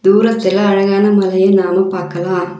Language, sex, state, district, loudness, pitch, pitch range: Tamil, female, Tamil Nadu, Nilgiris, -13 LUFS, 190 Hz, 185-195 Hz